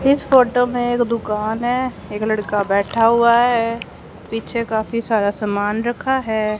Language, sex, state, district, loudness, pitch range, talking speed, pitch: Hindi, female, Haryana, Rohtak, -18 LUFS, 215-240 Hz, 155 wpm, 230 Hz